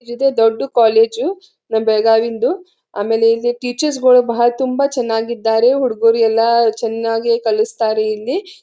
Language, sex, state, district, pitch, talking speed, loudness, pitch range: Kannada, female, Karnataka, Belgaum, 235 Hz, 120 wpm, -15 LUFS, 225-265 Hz